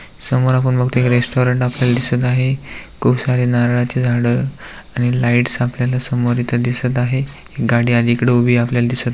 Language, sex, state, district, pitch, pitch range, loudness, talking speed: Marathi, male, Maharashtra, Aurangabad, 125 Hz, 120-125 Hz, -16 LUFS, 155 wpm